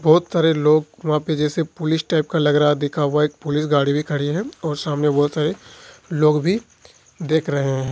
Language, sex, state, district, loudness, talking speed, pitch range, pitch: Hindi, male, Jharkhand, Ranchi, -20 LUFS, 220 wpm, 145-160 Hz, 150 Hz